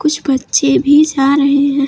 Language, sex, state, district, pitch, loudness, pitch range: Hindi, female, Uttar Pradesh, Lucknow, 280 Hz, -12 LUFS, 275-295 Hz